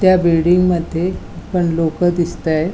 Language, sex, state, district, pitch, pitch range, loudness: Marathi, female, Goa, North and South Goa, 175 Hz, 165-180 Hz, -16 LUFS